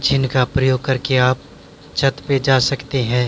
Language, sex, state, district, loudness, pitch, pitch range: Hindi, male, Haryana, Jhajjar, -18 LUFS, 130 Hz, 130-135 Hz